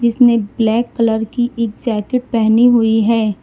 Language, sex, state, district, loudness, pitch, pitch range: Hindi, female, Uttar Pradesh, Lalitpur, -15 LUFS, 230 Hz, 220-240 Hz